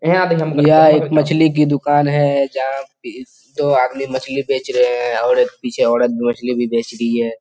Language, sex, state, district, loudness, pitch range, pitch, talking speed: Hindi, male, Bihar, Purnia, -16 LUFS, 130-165 Hz, 145 Hz, 205 wpm